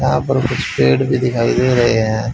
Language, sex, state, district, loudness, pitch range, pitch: Hindi, male, Haryana, Jhajjar, -15 LUFS, 110-125 Hz, 120 Hz